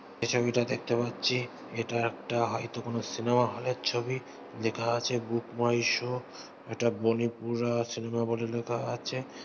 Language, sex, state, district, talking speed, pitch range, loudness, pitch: Bengali, male, West Bengal, North 24 Parganas, 140 wpm, 115-120 Hz, -31 LUFS, 120 Hz